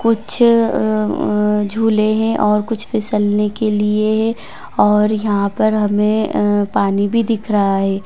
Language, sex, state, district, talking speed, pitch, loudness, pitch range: Hindi, female, Uttar Pradesh, Varanasi, 155 wpm, 215 Hz, -16 LUFS, 205-220 Hz